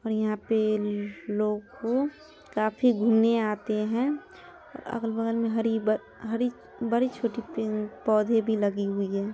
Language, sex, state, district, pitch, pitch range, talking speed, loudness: Hindi, female, Bihar, Araria, 225 Hz, 215-235 Hz, 155 wpm, -27 LUFS